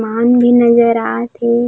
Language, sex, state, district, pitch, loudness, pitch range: Chhattisgarhi, female, Chhattisgarh, Raigarh, 235 Hz, -12 LUFS, 235-240 Hz